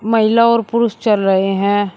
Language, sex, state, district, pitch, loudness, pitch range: Hindi, male, Uttar Pradesh, Shamli, 215 Hz, -14 LUFS, 200-230 Hz